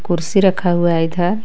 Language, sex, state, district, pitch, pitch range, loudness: Hindi, female, Jharkhand, Garhwa, 175 Hz, 170-190 Hz, -16 LUFS